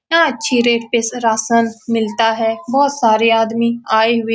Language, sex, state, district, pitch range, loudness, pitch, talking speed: Hindi, female, Bihar, Saran, 225-240 Hz, -15 LUFS, 230 Hz, 180 wpm